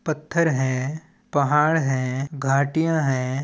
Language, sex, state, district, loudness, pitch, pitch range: Chhattisgarhi, male, Chhattisgarh, Balrampur, -22 LUFS, 145 Hz, 135-160 Hz